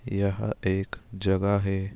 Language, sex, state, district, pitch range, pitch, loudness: Hindi, male, Bihar, Darbhanga, 95-100 Hz, 100 Hz, -27 LUFS